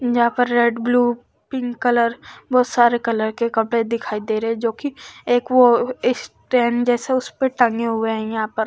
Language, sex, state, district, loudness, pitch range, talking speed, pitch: Hindi, female, Haryana, Charkhi Dadri, -19 LUFS, 230-245 Hz, 195 wpm, 240 Hz